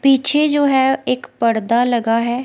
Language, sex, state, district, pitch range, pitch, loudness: Hindi, female, Himachal Pradesh, Shimla, 235-270 Hz, 255 Hz, -16 LUFS